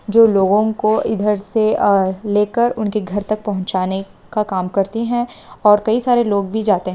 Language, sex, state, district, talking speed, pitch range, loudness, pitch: Hindi, female, West Bengal, Malda, 180 wpm, 200-220 Hz, -17 LUFS, 210 Hz